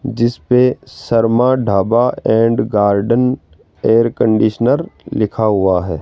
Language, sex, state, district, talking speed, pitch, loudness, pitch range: Hindi, male, Rajasthan, Jaipur, 110 wpm, 115 Hz, -14 LUFS, 105-120 Hz